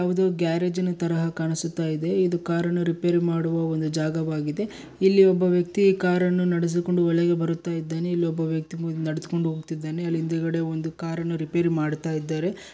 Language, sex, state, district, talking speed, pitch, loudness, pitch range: Kannada, male, Karnataka, Bellary, 145 wpm, 170 Hz, -24 LUFS, 160-175 Hz